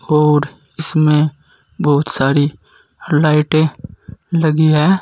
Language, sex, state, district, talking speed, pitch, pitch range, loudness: Hindi, male, Uttar Pradesh, Saharanpur, 85 wpm, 150 Hz, 150-155 Hz, -15 LUFS